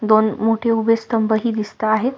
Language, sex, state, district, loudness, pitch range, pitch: Marathi, female, Maharashtra, Solapur, -18 LUFS, 215-230 Hz, 225 Hz